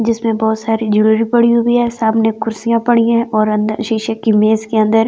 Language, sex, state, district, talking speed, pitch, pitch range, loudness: Hindi, female, Delhi, New Delhi, 245 wpm, 225 Hz, 220-230 Hz, -14 LUFS